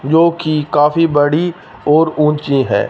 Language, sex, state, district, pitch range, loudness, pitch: Hindi, male, Punjab, Fazilka, 145-165 Hz, -14 LUFS, 150 Hz